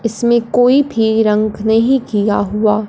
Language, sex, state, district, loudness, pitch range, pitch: Hindi, female, Punjab, Fazilka, -14 LUFS, 210-235 Hz, 220 Hz